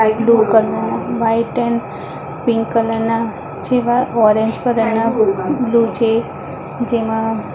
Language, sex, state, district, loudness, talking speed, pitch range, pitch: Gujarati, female, Maharashtra, Mumbai Suburban, -16 LUFS, 120 wpm, 225-235 Hz, 225 Hz